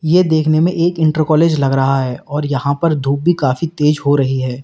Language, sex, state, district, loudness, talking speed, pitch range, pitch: Hindi, male, Uttar Pradesh, Lalitpur, -15 LUFS, 245 wpm, 135-160 Hz, 150 Hz